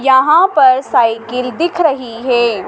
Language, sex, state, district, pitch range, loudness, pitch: Hindi, female, Madhya Pradesh, Dhar, 240-290 Hz, -12 LUFS, 255 Hz